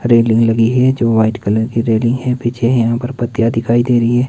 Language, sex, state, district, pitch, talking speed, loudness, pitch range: Hindi, male, Himachal Pradesh, Shimla, 120 Hz, 235 wpm, -14 LUFS, 115-120 Hz